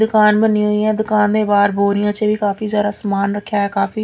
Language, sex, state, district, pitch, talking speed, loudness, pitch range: Punjabi, female, Punjab, Pathankot, 210 Hz, 240 wpm, -16 LUFS, 205-215 Hz